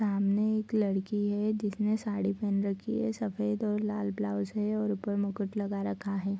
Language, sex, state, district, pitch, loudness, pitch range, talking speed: Hindi, female, Bihar, Bhagalpur, 210 Hz, -31 LUFS, 200-215 Hz, 190 wpm